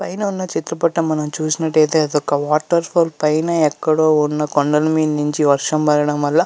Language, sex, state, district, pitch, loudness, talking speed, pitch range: Telugu, male, Andhra Pradesh, Visakhapatnam, 155 Hz, -17 LUFS, 175 wpm, 150-165 Hz